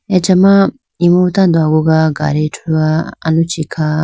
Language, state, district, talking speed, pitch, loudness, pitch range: Idu Mishmi, Arunachal Pradesh, Lower Dibang Valley, 135 wpm, 160 Hz, -13 LUFS, 155-180 Hz